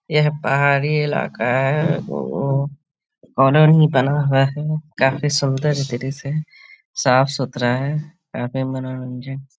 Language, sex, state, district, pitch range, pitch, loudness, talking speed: Hindi, male, Bihar, Araria, 130-150 Hz, 140 Hz, -19 LUFS, 125 wpm